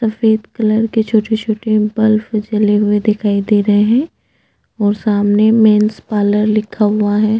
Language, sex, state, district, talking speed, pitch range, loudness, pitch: Hindi, female, Chhattisgarh, Jashpur, 160 wpm, 210-220 Hz, -14 LUFS, 215 Hz